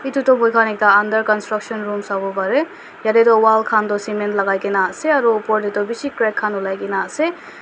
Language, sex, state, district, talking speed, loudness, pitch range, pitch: Nagamese, female, Nagaland, Dimapur, 215 wpm, -17 LUFS, 205-230 Hz, 215 Hz